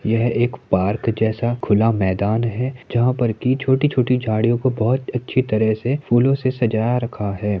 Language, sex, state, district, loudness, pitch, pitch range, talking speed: Hindi, male, Uttar Pradesh, Muzaffarnagar, -19 LUFS, 120 Hz, 110-125 Hz, 175 wpm